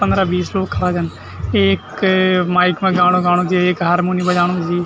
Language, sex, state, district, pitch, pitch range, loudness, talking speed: Garhwali, male, Uttarakhand, Tehri Garhwal, 180 Hz, 175-180 Hz, -16 LUFS, 185 wpm